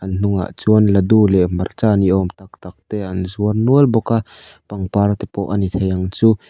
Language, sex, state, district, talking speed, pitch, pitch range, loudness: Mizo, male, Mizoram, Aizawl, 220 wpm, 100 Hz, 95-105 Hz, -17 LUFS